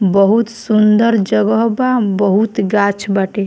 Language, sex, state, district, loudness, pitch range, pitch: Bhojpuri, female, Bihar, Muzaffarpur, -14 LUFS, 200-225 Hz, 210 Hz